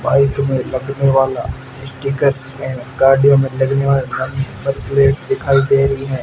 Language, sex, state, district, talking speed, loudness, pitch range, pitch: Hindi, male, Rajasthan, Bikaner, 165 wpm, -16 LUFS, 130-140 Hz, 135 Hz